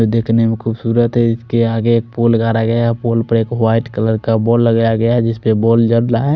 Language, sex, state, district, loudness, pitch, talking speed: Hindi, male, Odisha, Khordha, -14 LUFS, 115 Hz, 205 wpm